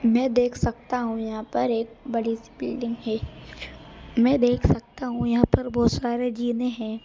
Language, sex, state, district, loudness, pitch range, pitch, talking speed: Hindi, male, Madhya Pradesh, Bhopal, -25 LUFS, 230-245 Hz, 240 Hz, 180 wpm